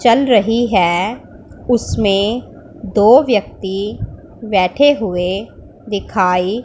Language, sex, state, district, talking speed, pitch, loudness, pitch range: Hindi, female, Punjab, Pathankot, 80 wpm, 205 Hz, -15 LUFS, 190-235 Hz